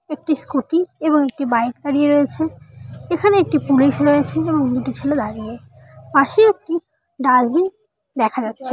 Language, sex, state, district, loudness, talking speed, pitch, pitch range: Bengali, female, West Bengal, Jalpaiguri, -18 LUFS, 130 wpm, 290 Hz, 255-325 Hz